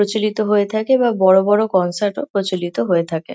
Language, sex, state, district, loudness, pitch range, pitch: Bengali, female, West Bengal, North 24 Parganas, -17 LUFS, 185-215 Hz, 205 Hz